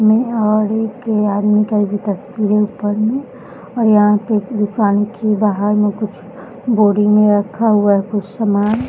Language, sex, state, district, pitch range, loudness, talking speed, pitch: Hindi, female, Bihar, Araria, 205-225 Hz, -15 LUFS, 150 wpm, 210 Hz